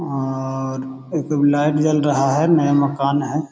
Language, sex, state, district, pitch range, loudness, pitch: Hindi, male, Bihar, Gaya, 135-150 Hz, -19 LUFS, 145 Hz